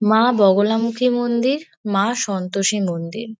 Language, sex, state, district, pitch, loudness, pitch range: Bengali, female, West Bengal, Kolkata, 220 Hz, -19 LUFS, 195-240 Hz